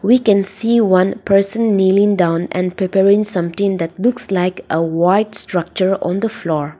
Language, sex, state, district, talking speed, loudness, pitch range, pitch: English, female, Nagaland, Dimapur, 170 wpm, -16 LUFS, 180-205 Hz, 195 Hz